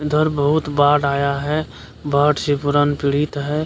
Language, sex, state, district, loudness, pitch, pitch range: Hindi, male, Bihar, Kishanganj, -18 LUFS, 145 Hz, 145-150 Hz